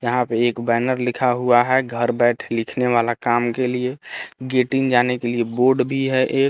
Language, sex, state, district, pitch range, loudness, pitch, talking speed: Hindi, male, Bihar, Patna, 120-130 Hz, -19 LUFS, 125 Hz, 210 wpm